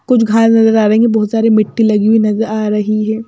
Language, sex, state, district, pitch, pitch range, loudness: Hindi, female, Madhya Pradesh, Bhopal, 220 Hz, 215-225 Hz, -12 LUFS